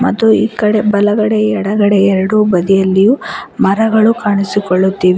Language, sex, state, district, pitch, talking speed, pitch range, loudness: Kannada, female, Karnataka, Bidar, 205 Hz, 105 wpm, 195-215 Hz, -12 LUFS